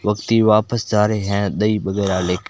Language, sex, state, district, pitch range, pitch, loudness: Hindi, male, Rajasthan, Bikaner, 100-110 Hz, 105 Hz, -18 LUFS